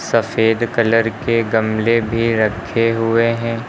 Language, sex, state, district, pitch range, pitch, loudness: Hindi, male, Uttar Pradesh, Lucknow, 110-115 Hz, 115 Hz, -17 LUFS